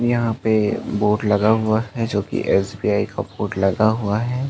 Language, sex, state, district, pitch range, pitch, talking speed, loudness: Hindi, male, Uttar Pradesh, Jalaun, 105-115 Hz, 110 Hz, 185 wpm, -20 LUFS